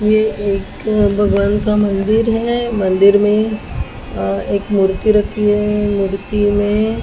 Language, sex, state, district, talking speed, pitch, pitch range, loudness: Hindi, female, Maharashtra, Mumbai Suburban, 130 wpm, 205 Hz, 200-215 Hz, -15 LUFS